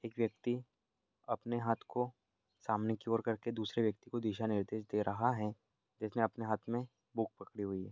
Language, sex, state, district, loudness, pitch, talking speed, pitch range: Angika, male, Bihar, Madhepura, -38 LUFS, 110 Hz, 190 wpm, 105-120 Hz